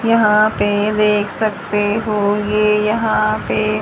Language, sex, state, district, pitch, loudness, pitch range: Hindi, female, Haryana, Rohtak, 210 Hz, -16 LUFS, 210-215 Hz